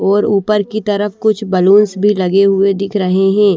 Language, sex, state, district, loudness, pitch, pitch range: Hindi, female, Haryana, Rohtak, -13 LUFS, 200 Hz, 195-210 Hz